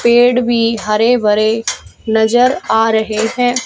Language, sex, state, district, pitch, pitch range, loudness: Hindi, female, Haryana, Charkhi Dadri, 230 Hz, 220-245 Hz, -13 LUFS